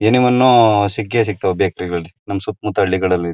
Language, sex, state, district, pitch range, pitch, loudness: Kannada, male, Karnataka, Mysore, 90-115 Hz, 105 Hz, -16 LUFS